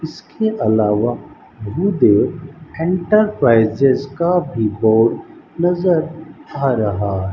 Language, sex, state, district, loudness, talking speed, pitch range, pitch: Hindi, male, Rajasthan, Bikaner, -16 LUFS, 80 wpm, 110-175 Hz, 145 Hz